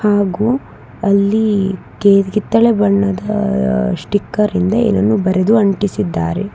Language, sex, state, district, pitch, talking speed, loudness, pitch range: Kannada, female, Karnataka, Bangalore, 200 Hz, 90 wpm, -15 LUFS, 190-210 Hz